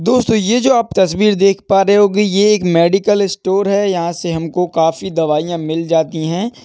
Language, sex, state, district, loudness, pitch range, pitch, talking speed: Hindi, male, Uttar Pradesh, Budaun, -14 LUFS, 170-205 Hz, 195 Hz, 200 wpm